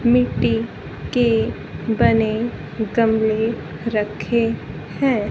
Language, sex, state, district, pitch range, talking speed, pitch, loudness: Hindi, female, Haryana, Charkhi Dadri, 220-235 Hz, 70 wpm, 225 Hz, -20 LUFS